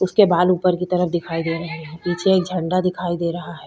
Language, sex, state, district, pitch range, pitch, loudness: Hindi, female, Uttar Pradesh, Budaun, 170-180 Hz, 175 Hz, -20 LUFS